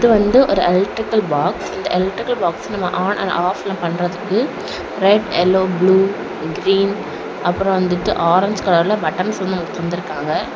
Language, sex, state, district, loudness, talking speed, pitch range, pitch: Tamil, female, Tamil Nadu, Kanyakumari, -17 LUFS, 140 wpm, 180-205 Hz, 190 Hz